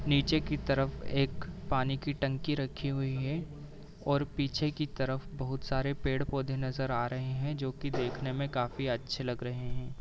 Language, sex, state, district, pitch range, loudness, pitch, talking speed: Hindi, male, Uttar Pradesh, Deoria, 130-145 Hz, -34 LUFS, 135 Hz, 180 wpm